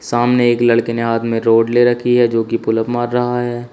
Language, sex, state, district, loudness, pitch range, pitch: Hindi, male, Uttar Pradesh, Shamli, -15 LUFS, 115-120 Hz, 120 Hz